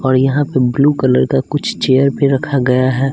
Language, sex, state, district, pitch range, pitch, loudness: Hindi, male, Bihar, West Champaran, 130-140 Hz, 130 Hz, -14 LUFS